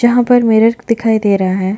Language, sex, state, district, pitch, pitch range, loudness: Hindi, female, Chhattisgarh, Bastar, 225 Hz, 200-240 Hz, -12 LUFS